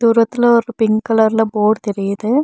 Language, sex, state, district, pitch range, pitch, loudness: Tamil, female, Tamil Nadu, Nilgiris, 215-230 Hz, 225 Hz, -15 LUFS